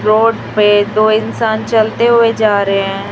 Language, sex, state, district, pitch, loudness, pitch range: Hindi, female, Chhattisgarh, Raipur, 215 Hz, -12 LUFS, 205-225 Hz